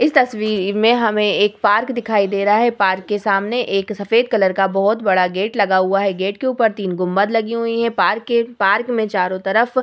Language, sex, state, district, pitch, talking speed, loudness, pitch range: Hindi, female, Bihar, Vaishali, 210 Hz, 225 wpm, -17 LUFS, 195-230 Hz